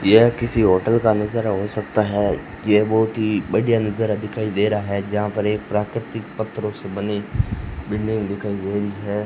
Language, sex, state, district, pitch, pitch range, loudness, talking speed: Hindi, male, Rajasthan, Bikaner, 105 Hz, 105-110 Hz, -21 LUFS, 190 wpm